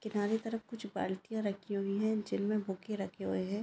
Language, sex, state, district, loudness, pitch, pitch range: Hindi, female, Maharashtra, Sindhudurg, -36 LUFS, 210 Hz, 195-220 Hz